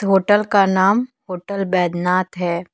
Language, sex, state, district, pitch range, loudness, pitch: Hindi, female, Jharkhand, Deoghar, 180-200 Hz, -18 LUFS, 190 Hz